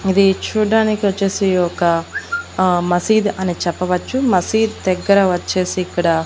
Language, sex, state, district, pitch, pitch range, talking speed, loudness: Telugu, female, Andhra Pradesh, Annamaya, 190 Hz, 180-215 Hz, 125 wpm, -17 LUFS